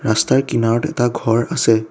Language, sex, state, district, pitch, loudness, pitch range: Assamese, male, Assam, Kamrup Metropolitan, 120 Hz, -17 LUFS, 115-135 Hz